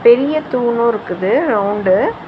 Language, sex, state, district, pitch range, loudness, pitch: Tamil, female, Tamil Nadu, Chennai, 195-240 Hz, -15 LUFS, 235 Hz